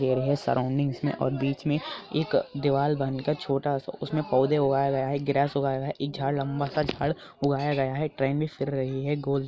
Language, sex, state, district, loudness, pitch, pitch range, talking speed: Hindi, male, Andhra Pradesh, Anantapur, -27 LUFS, 140 Hz, 135-145 Hz, 215 wpm